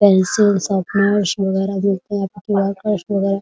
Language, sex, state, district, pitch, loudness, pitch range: Hindi, female, Bihar, Muzaffarpur, 195 Hz, -18 LUFS, 195-205 Hz